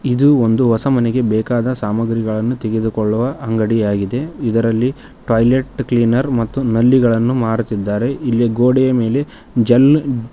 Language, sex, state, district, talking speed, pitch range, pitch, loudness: Kannada, male, Karnataka, Koppal, 110 wpm, 115-130 Hz, 120 Hz, -16 LUFS